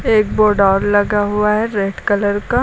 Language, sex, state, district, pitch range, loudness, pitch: Hindi, female, Uttar Pradesh, Lucknow, 205-215 Hz, -15 LUFS, 205 Hz